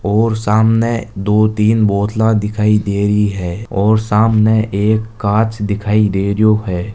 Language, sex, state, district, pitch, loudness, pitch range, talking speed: Marwari, male, Rajasthan, Nagaur, 105 Hz, -14 LUFS, 100-110 Hz, 140 wpm